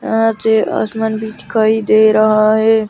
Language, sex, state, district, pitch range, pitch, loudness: Hindi, female, Rajasthan, Jaipur, 215-220 Hz, 220 Hz, -13 LUFS